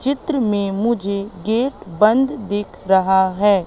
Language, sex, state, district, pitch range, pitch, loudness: Hindi, female, Madhya Pradesh, Katni, 190-235 Hz, 205 Hz, -18 LUFS